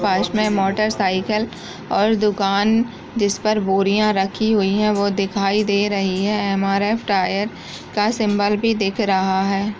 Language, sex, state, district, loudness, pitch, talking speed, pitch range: Hindi, female, Uttar Pradesh, Jyotiba Phule Nagar, -19 LUFS, 205 Hz, 145 wpm, 195-215 Hz